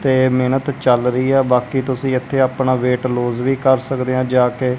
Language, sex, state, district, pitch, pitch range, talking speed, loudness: Punjabi, male, Punjab, Kapurthala, 130 Hz, 125-130 Hz, 215 wpm, -17 LUFS